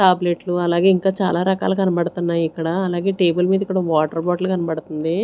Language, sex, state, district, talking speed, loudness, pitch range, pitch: Telugu, female, Andhra Pradesh, Sri Satya Sai, 170 wpm, -19 LUFS, 170-190 Hz, 175 Hz